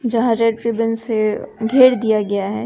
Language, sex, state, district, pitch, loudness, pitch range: Hindi, female, Bihar, West Champaran, 230 Hz, -17 LUFS, 215-235 Hz